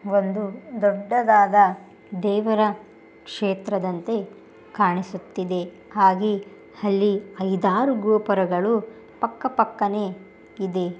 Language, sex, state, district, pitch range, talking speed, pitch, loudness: Kannada, female, Karnataka, Bellary, 190-210 Hz, 65 wpm, 205 Hz, -22 LUFS